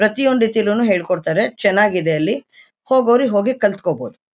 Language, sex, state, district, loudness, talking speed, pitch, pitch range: Kannada, female, Karnataka, Mysore, -17 LUFS, 95 wpm, 210 Hz, 200-245 Hz